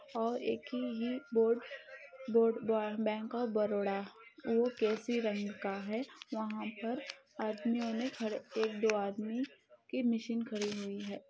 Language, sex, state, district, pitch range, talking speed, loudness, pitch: Hindi, female, Rajasthan, Nagaur, 215-245 Hz, 140 wpm, -36 LUFS, 230 Hz